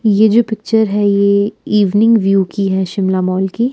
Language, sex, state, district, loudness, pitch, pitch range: Hindi, female, Himachal Pradesh, Shimla, -13 LUFS, 205 Hz, 195-220 Hz